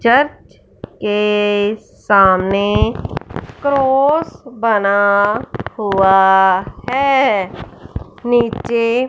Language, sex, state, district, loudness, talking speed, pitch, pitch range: Hindi, male, Punjab, Fazilka, -15 LUFS, 55 wpm, 210 Hz, 200-255 Hz